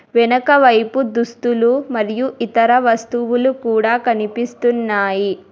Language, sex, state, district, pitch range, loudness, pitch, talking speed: Telugu, female, Telangana, Hyderabad, 225-245 Hz, -16 LUFS, 235 Hz, 85 wpm